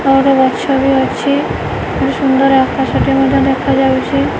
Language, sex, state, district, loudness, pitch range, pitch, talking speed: Odia, female, Odisha, Nuapada, -13 LUFS, 265-275 Hz, 270 Hz, 125 wpm